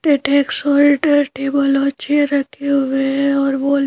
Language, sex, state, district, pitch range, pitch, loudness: Hindi, female, Madhya Pradesh, Bhopal, 275-285 Hz, 280 Hz, -16 LUFS